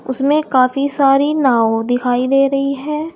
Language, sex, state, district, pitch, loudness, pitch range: Hindi, female, Uttar Pradesh, Saharanpur, 275 Hz, -15 LUFS, 255-285 Hz